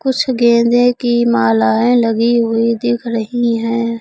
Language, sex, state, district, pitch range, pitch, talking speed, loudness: Hindi, female, Uttar Pradesh, Lucknow, 230-240 Hz, 235 Hz, 135 wpm, -14 LUFS